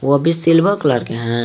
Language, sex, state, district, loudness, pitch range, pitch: Hindi, male, Jharkhand, Garhwa, -15 LUFS, 120-165 Hz, 145 Hz